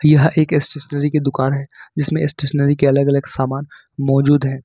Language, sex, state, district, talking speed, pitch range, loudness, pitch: Hindi, male, Jharkhand, Ranchi, 180 wpm, 140-150 Hz, -17 LUFS, 145 Hz